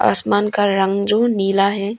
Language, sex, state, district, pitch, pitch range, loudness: Hindi, female, Arunachal Pradesh, Longding, 205 Hz, 195-210 Hz, -17 LUFS